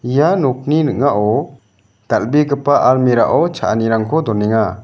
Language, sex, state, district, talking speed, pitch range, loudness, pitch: Garo, male, Meghalaya, South Garo Hills, 100 wpm, 110-145 Hz, -15 LUFS, 125 Hz